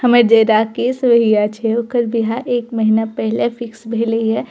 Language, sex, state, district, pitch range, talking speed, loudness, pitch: Maithili, female, Bihar, Purnia, 220-240 Hz, 175 wpm, -16 LUFS, 230 Hz